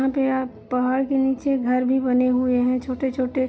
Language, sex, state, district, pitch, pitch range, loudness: Hindi, female, Uttar Pradesh, Jalaun, 260 Hz, 250-265 Hz, -22 LUFS